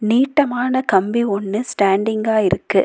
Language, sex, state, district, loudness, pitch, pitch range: Tamil, female, Tamil Nadu, Nilgiris, -18 LUFS, 215 Hz, 200-245 Hz